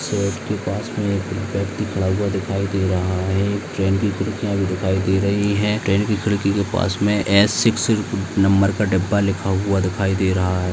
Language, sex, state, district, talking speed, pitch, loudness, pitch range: Hindi, male, Maharashtra, Aurangabad, 205 wpm, 100 Hz, -20 LUFS, 95-105 Hz